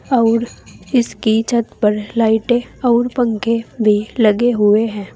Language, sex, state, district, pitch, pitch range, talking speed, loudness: Hindi, female, Uttar Pradesh, Saharanpur, 230 Hz, 215-240 Hz, 130 wpm, -16 LUFS